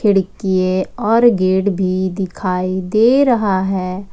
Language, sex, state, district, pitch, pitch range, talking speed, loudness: Hindi, female, Jharkhand, Ranchi, 190 Hz, 185-210 Hz, 115 wpm, -16 LUFS